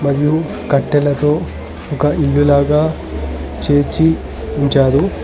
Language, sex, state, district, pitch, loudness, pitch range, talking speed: Telugu, male, Telangana, Hyderabad, 145 Hz, -15 LUFS, 135-150 Hz, 80 wpm